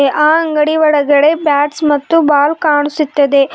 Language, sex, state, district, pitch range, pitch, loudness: Kannada, female, Karnataka, Bidar, 290-310 Hz, 295 Hz, -12 LUFS